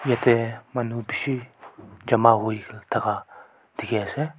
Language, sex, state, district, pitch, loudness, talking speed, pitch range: Nagamese, male, Nagaland, Kohima, 115 Hz, -24 LUFS, 110 wpm, 110-125 Hz